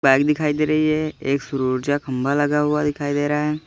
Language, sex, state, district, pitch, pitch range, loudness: Hindi, male, Uttar Pradesh, Lalitpur, 145 Hz, 140-150 Hz, -21 LUFS